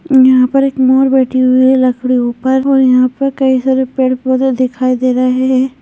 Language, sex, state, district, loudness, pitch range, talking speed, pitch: Hindi, male, Uttarakhand, Tehri Garhwal, -11 LUFS, 255-265 Hz, 205 wpm, 260 Hz